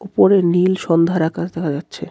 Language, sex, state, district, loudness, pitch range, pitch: Bengali, male, West Bengal, Cooch Behar, -17 LUFS, 165-185 Hz, 175 Hz